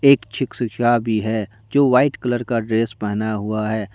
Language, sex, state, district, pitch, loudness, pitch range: Hindi, male, Jharkhand, Deoghar, 110 Hz, -20 LUFS, 110-125 Hz